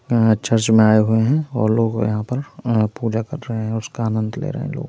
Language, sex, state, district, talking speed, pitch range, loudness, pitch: Hindi, male, Uttar Pradesh, Muzaffarnagar, 245 wpm, 110-130 Hz, -19 LUFS, 115 Hz